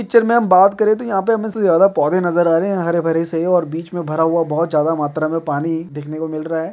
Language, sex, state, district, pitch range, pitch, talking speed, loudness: Hindi, male, Bihar, Darbhanga, 160-195 Hz, 165 Hz, 275 wpm, -17 LUFS